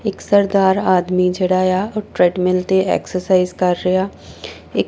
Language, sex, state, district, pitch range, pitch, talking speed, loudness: Punjabi, female, Punjab, Kapurthala, 180-190 Hz, 185 Hz, 150 wpm, -17 LUFS